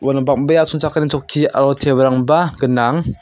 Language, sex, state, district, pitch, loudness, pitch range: Garo, male, Meghalaya, South Garo Hills, 140 Hz, -15 LUFS, 135-155 Hz